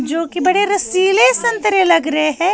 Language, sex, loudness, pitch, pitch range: Urdu, female, -14 LUFS, 370 Hz, 330-405 Hz